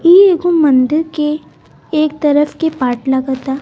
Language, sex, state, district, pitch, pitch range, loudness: Hindi, female, Bihar, West Champaran, 300 Hz, 265-320 Hz, -13 LUFS